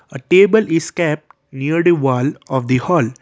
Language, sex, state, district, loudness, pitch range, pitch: English, male, Assam, Kamrup Metropolitan, -16 LUFS, 135-175 Hz, 160 Hz